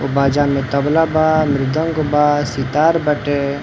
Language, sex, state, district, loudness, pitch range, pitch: Bhojpuri, male, Uttar Pradesh, Varanasi, -16 LUFS, 140-155 Hz, 145 Hz